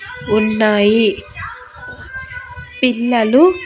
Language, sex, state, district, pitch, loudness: Telugu, female, Andhra Pradesh, Annamaya, 255 Hz, -14 LUFS